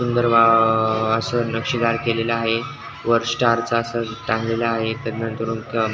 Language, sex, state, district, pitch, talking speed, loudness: Marathi, male, Maharashtra, Dhule, 115 Hz, 110 wpm, -20 LUFS